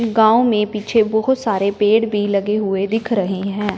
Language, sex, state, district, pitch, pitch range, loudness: Hindi, female, Punjab, Fazilka, 210 Hz, 200-225 Hz, -17 LUFS